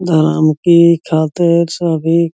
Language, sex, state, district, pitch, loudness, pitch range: Hindi, male, Uttar Pradesh, Muzaffarnagar, 165 Hz, -12 LUFS, 160-170 Hz